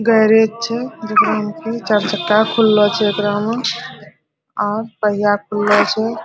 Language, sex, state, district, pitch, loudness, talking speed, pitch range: Hindi, female, Bihar, Araria, 215 Hz, -16 LUFS, 145 wpm, 210-225 Hz